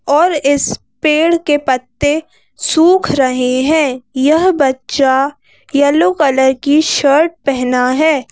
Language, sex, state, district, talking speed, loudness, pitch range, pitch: Hindi, female, Madhya Pradesh, Bhopal, 115 wpm, -13 LUFS, 265-315 Hz, 285 Hz